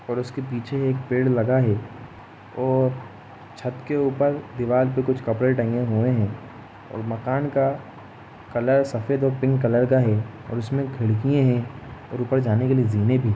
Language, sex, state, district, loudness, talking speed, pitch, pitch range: Hindi, male, Jharkhand, Sahebganj, -23 LUFS, 165 wpm, 125 Hz, 115-130 Hz